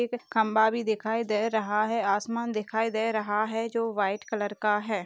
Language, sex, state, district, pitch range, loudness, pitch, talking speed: Hindi, female, Chhattisgarh, Jashpur, 210-225 Hz, -28 LUFS, 220 Hz, 200 wpm